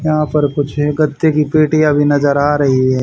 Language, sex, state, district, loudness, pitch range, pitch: Hindi, male, Haryana, Charkhi Dadri, -13 LUFS, 145-155 Hz, 150 Hz